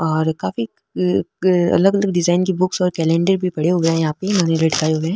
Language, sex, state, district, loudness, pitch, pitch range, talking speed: Marwari, female, Rajasthan, Nagaur, -18 LUFS, 175 Hz, 160-185 Hz, 210 wpm